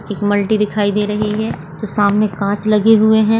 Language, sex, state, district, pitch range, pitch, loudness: Hindi, female, Maharashtra, Solapur, 205-215 Hz, 210 Hz, -15 LUFS